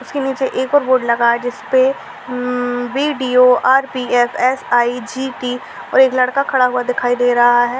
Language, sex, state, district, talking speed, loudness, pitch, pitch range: Hindi, female, Uttar Pradesh, Gorakhpur, 215 wpm, -15 LUFS, 250 Hz, 245-265 Hz